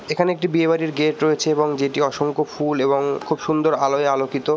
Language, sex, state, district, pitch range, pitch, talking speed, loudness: Bengali, male, West Bengal, Purulia, 140-155 Hz, 150 Hz, 185 wpm, -20 LUFS